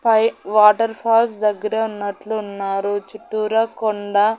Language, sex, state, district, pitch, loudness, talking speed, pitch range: Telugu, female, Andhra Pradesh, Annamaya, 215 Hz, -19 LUFS, 125 wpm, 205-225 Hz